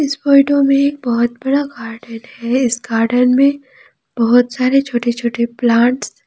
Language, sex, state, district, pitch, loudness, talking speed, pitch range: Hindi, female, Jharkhand, Ranchi, 250 Hz, -15 LUFS, 155 wpm, 235-275 Hz